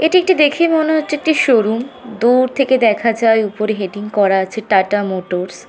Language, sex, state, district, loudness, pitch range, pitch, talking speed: Bengali, female, West Bengal, North 24 Parganas, -15 LUFS, 205-285 Hz, 225 Hz, 200 wpm